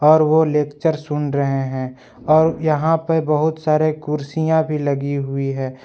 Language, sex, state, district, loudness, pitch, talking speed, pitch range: Hindi, male, Jharkhand, Palamu, -18 LUFS, 150 Hz, 165 wpm, 140-155 Hz